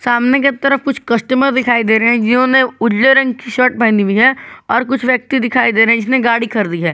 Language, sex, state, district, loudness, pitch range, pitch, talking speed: Hindi, male, Jharkhand, Garhwa, -13 LUFS, 230-265 Hz, 240 Hz, 240 wpm